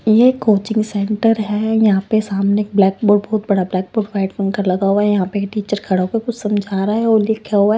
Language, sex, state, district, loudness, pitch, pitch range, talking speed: Hindi, female, Punjab, Pathankot, -16 LUFS, 210 Hz, 195-215 Hz, 240 wpm